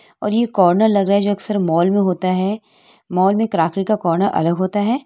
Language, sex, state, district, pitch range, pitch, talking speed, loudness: Hindi, female, Uttar Pradesh, Etah, 185-215 Hz, 200 Hz, 225 wpm, -17 LUFS